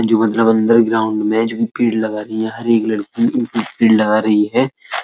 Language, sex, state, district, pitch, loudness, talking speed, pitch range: Hindi, male, Uttar Pradesh, Etah, 110 Hz, -16 LUFS, 215 wpm, 110-115 Hz